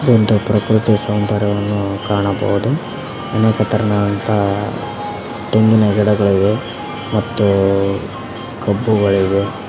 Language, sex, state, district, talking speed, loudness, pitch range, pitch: Kannada, male, Karnataka, Koppal, 60 wpm, -16 LUFS, 100-110 Hz, 105 Hz